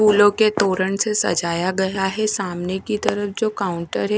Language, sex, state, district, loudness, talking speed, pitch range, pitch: Hindi, female, Odisha, Nuapada, -20 LUFS, 185 wpm, 185-210 Hz, 195 Hz